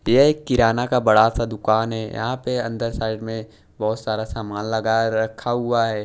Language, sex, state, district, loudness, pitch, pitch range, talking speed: Hindi, male, Bihar, West Champaran, -21 LUFS, 110 Hz, 110-120 Hz, 200 wpm